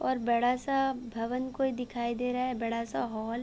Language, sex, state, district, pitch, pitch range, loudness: Hindi, female, Uttar Pradesh, Varanasi, 245 Hz, 235-255 Hz, -31 LUFS